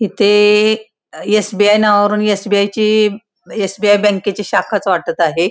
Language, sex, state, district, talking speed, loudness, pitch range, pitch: Marathi, female, Maharashtra, Pune, 110 wpm, -13 LUFS, 200-215 Hz, 210 Hz